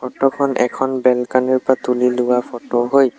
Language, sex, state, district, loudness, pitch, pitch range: Assamese, male, Assam, Sonitpur, -17 LUFS, 125 Hz, 125-130 Hz